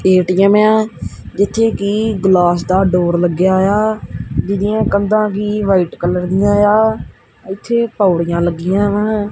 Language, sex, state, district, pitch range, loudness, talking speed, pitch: Punjabi, male, Punjab, Kapurthala, 185-215 Hz, -14 LUFS, 130 wpm, 200 Hz